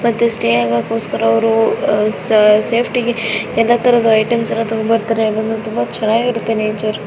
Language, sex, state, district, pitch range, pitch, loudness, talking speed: Kannada, female, Karnataka, Belgaum, 215-230 Hz, 225 Hz, -15 LUFS, 110 wpm